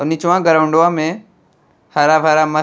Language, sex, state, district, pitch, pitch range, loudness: Bhojpuri, male, Uttar Pradesh, Deoria, 155 Hz, 155-170 Hz, -14 LUFS